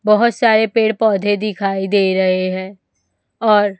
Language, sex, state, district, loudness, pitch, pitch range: Hindi, female, Chhattisgarh, Raipur, -16 LUFS, 205 Hz, 190-220 Hz